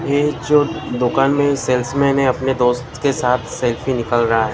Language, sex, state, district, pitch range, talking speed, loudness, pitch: Hindi, male, Maharashtra, Mumbai Suburban, 125-140 Hz, 200 wpm, -17 LUFS, 125 Hz